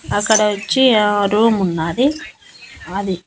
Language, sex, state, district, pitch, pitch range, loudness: Telugu, female, Andhra Pradesh, Annamaya, 210 Hz, 195-230 Hz, -16 LUFS